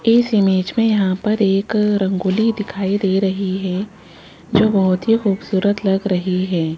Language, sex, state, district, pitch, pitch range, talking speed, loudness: Hindi, female, Rajasthan, Jaipur, 195 Hz, 190-210 Hz, 160 wpm, -17 LUFS